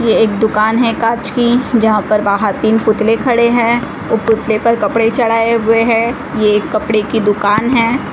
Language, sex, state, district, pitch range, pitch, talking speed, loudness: Hindi, female, Odisha, Malkangiri, 215-235 Hz, 225 Hz, 185 wpm, -13 LUFS